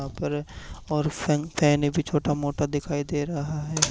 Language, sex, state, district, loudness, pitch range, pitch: Hindi, male, Haryana, Charkhi Dadri, -26 LUFS, 145-150 Hz, 150 Hz